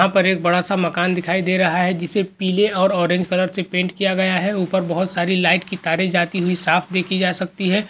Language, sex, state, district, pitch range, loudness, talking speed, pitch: Hindi, male, Bihar, Begusarai, 180-190 Hz, -19 LUFS, 245 wpm, 185 Hz